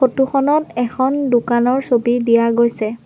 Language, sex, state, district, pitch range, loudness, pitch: Assamese, female, Assam, Sonitpur, 235-270 Hz, -16 LUFS, 245 Hz